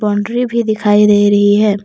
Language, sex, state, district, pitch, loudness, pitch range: Hindi, female, Jharkhand, Deoghar, 210 Hz, -12 LUFS, 205-215 Hz